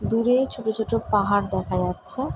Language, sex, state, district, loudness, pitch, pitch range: Bengali, female, West Bengal, Jalpaiguri, -23 LUFS, 220 Hz, 210-240 Hz